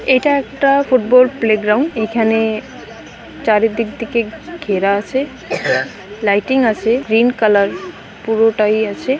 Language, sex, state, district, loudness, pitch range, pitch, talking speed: Bengali, female, West Bengal, Malda, -15 LUFS, 215-260 Hz, 225 Hz, 100 wpm